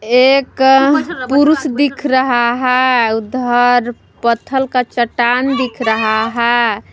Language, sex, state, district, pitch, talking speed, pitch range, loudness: Hindi, female, Jharkhand, Palamu, 250 Hz, 105 wpm, 235-265 Hz, -13 LUFS